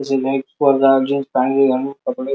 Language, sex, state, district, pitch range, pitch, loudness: Marathi, male, Maharashtra, Sindhudurg, 135-140 Hz, 135 Hz, -17 LUFS